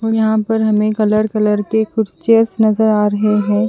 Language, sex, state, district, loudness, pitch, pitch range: Hindi, female, Chandigarh, Chandigarh, -15 LUFS, 215 Hz, 210-220 Hz